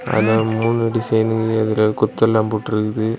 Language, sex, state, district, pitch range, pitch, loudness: Tamil, male, Tamil Nadu, Kanyakumari, 110-115 Hz, 110 Hz, -18 LUFS